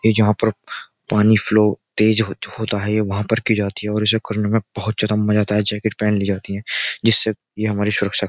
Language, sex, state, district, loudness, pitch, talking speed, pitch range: Hindi, male, Uttar Pradesh, Jyotiba Phule Nagar, -18 LUFS, 105 Hz, 240 wpm, 105-110 Hz